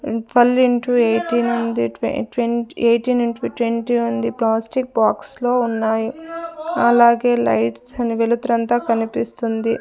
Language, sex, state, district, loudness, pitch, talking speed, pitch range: Telugu, female, Andhra Pradesh, Sri Satya Sai, -18 LUFS, 235 Hz, 110 wpm, 230-245 Hz